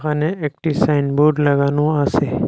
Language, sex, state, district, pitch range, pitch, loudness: Bengali, male, Assam, Hailakandi, 145-155 Hz, 150 Hz, -17 LUFS